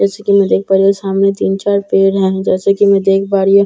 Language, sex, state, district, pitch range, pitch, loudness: Hindi, female, Bihar, Katihar, 195-200 Hz, 195 Hz, -12 LUFS